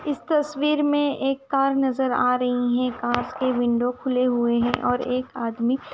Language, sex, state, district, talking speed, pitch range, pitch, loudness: Hindi, female, Punjab, Kapurthala, 180 wpm, 245-275 Hz, 255 Hz, -23 LUFS